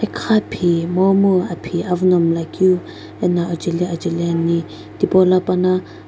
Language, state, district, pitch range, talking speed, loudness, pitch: Sumi, Nagaland, Kohima, 170-185 Hz, 130 wpm, -17 LUFS, 175 Hz